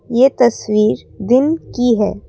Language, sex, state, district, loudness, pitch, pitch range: Hindi, female, Assam, Kamrup Metropolitan, -15 LUFS, 240 Hz, 215-255 Hz